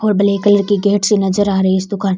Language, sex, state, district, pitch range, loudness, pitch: Rajasthani, female, Rajasthan, Churu, 195-205 Hz, -14 LUFS, 200 Hz